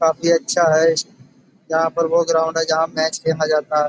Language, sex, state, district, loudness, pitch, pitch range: Hindi, male, Uttar Pradesh, Budaun, -18 LUFS, 160 Hz, 160-165 Hz